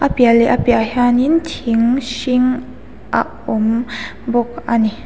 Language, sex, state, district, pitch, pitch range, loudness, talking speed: Mizo, female, Mizoram, Aizawl, 240 Hz, 230-250 Hz, -16 LUFS, 165 wpm